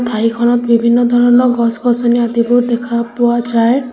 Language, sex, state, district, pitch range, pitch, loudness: Assamese, female, Assam, Sonitpur, 235-245 Hz, 240 Hz, -13 LUFS